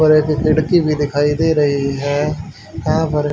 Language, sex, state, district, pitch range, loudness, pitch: Hindi, male, Haryana, Rohtak, 145-155 Hz, -16 LUFS, 150 Hz